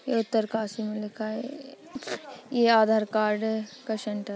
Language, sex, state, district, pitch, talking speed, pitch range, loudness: Hindi, female, Uttarakhand, Uttarkashi, 220 Hz, 150 wpm, 215-245 Hz, -27 LUFS